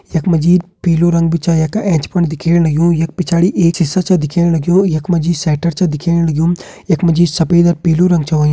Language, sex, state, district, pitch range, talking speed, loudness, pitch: Hindi, male, Uttarakhand, Uttarkashi, 165-175 Hz, 245 wpm, -13 LUFS, 170 Hz